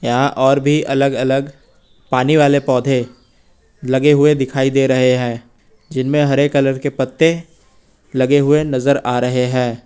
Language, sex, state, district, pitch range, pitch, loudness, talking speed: Hindi, male, Uttar Pradesh, Lucknow, 125-140 Hz, 135 Hz, -15 LUFS, 150 wpm